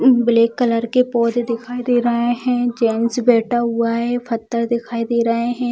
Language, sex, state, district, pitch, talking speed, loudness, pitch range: Hindi, female, Bihar, Muzaffarpur, 235 Hz, 190 wpm, -18 LUFS, 230-245 Hz